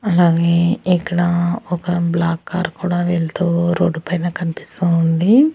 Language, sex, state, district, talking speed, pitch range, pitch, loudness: Telugu, female, Andhra Pradesh, Annamaya, 120 wpm, 170-180 Hz, 175 Hz, -17 LUFS